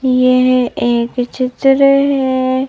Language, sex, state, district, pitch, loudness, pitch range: Hindi, female, Madhya Pradesh, Bhopal, 255 Hz, -13 LUFS, 250-270 Hz